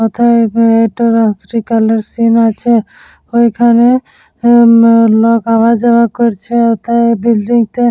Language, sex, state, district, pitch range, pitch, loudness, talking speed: Bengali, female, West Bengal, Dakshin Dinajpur, 225-235 Hz, 230 Hz, -10 LUFS, 120 wpm